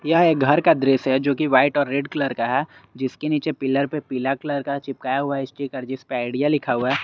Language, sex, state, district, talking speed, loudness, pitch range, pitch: Hindi, male, Jharkhand, Garhwa, 240 wpm, -21 LUFS, 130-150 Hz, 140 Hz